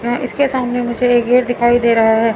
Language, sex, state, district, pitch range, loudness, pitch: Hindi, female, Chandigarh, Chandigarh, 235-250 Hz, -14 LUFS, 240 Hz